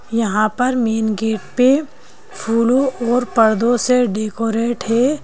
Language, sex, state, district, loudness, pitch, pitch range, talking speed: Hindi, female, Madhya Pradesh, Bhopal, -17 LUFS, 235 Hz, 220-250 Hz, 125 wpm